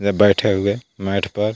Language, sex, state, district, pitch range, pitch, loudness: Hindi, male, Jharkhand, Garhwa, 100-105 Hz, 100 Hz, -19 LUFS